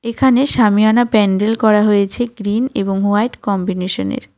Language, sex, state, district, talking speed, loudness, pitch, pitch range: Bengali, female, West Bengal, Cooch Behar, 125 wpm, -15 LUFS, 215 Hz, 200-240 Hz